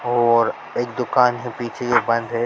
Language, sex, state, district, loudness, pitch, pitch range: Hindi, male, Bihar, Jamui, -20 LUFS, 120 Hz, 120-125 Hz